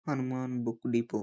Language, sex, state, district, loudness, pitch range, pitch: Telugu, male, Telangana, Karimnagar, -33 LUFS, 115-130 Hz, 125 Hz